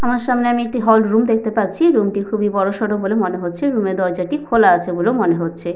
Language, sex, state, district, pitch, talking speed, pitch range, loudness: Bengali, female, Jharkhand, Sahebganj, 215 Hz, 240 wpm, 190-235 Hz, -17 LUFS